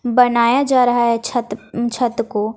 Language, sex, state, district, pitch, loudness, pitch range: Hindi, female, Bihar, West Champaran, 240 Hz, -17 LUFS, 230-245 Hz